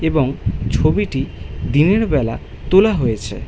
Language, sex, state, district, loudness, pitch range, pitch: Bengali, male, West Bengal, Malda, -17 LUFS, 110-165 Hz, 135 Hz